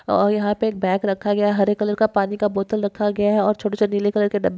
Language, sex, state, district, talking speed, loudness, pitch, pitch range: Hindi, female, Maharashtra, Dhule, 300 wpm, -20 LUFS, 205 Hz, 205-210 Hz